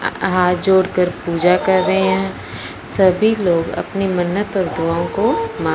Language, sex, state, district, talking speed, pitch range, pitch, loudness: Hindi, male, Punjab, Fazilka, 145 wpm, 175-195 Hz, 185 Hz, -17 LUFS